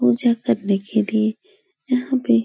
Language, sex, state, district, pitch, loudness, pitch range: Hindi, female, Uttar Pradesh, Etah, 235 Hz, -20 LUFS, 215-260 Hz